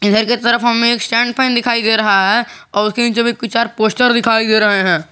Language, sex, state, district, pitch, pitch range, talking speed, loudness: Hindi, male, Jharkhand, Garhwa, 230 Hz, 215-240 Hz, 245 wpm, -13 LUFS